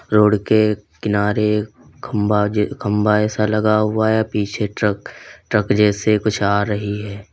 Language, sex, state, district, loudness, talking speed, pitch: Hindi, male, Uttar Pradesh, Lalitpur, -18 LUFS, 140 wpm, 105 Hz